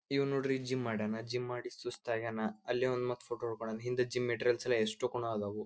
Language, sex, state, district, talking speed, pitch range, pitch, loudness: Kannada, male, Karnataka, Belgaum, 170 wpm, 115-125 Hz, 120 Hz, -36 LUFS